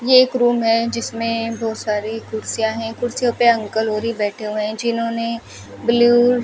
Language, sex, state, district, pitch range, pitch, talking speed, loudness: Hindi, female, Rajasthan, Bikaner, 220-240 Hz, 230 Hz, 175 wpm, -19 LUFS